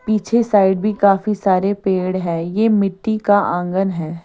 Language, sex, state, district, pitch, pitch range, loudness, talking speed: Hindi, female, Bihar, West Champaran, 195 Hz, 185-210 Hz, -17 LUFS, 170 wpm